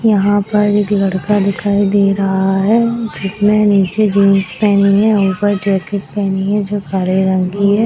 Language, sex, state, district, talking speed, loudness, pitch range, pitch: Hindi, female, Bihar, Madhepura, 175 wpm, -14 LUFS, 195-205 Hz, 200 Hz